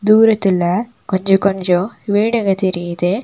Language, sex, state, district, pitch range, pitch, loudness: Tamil, female, Tamil Nadu, Nilgiris, 185-215 Hz, 195 Hz, -16 LUFS